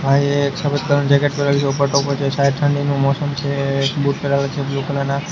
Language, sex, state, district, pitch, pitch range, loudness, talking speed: Gujarati, male, Gujarat, Gandhinagar, 140 Hz, 140-145 Hz, -18 LUFS, 235 wpm